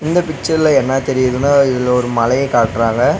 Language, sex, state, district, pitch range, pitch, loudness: Tamil, male, Tamil Nadu, Nilgiris, 125-140 Hz, 130 Hz, -14 LUFS